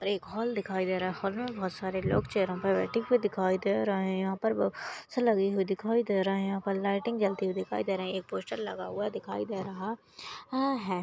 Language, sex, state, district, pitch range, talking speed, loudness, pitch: Hindi, female, Maharashtra, Aurangabad, 190-215 Hz, 260 wpm, -31 LUFS, 195 Hz